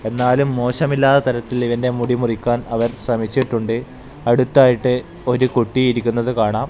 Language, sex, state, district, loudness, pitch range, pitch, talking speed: Malayalam, male, Kerala, Kasaragod, -18 LUFS, 120-130 Hz, 125 Hz, 115 wpm